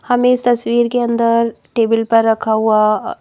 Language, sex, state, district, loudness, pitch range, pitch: Hindi, female, Madhya Pradesh, Bhopal, -15 LUFS, 225-240 Hz, 230 Hz